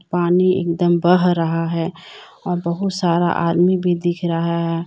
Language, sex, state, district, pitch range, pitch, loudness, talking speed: Hindi, female, Jharkhand, Deoghar, 170-180 Hz, 175 Hz, -18 LUFS, 170 wpm